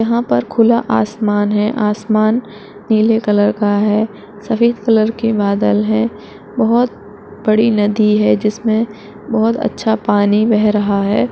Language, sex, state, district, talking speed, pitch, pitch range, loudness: Hindi, female, Uttar Pradesh, Etah, 140 wpm, 210 Hz, 205-225 Hz, -15 LUFS